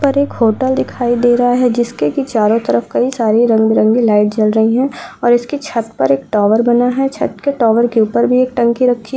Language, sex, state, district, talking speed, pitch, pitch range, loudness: Hindi, female, Uttarakhand, Uttarkashi, 250 wpm, 240 Hz, 220-250 Hz, -13 LUFS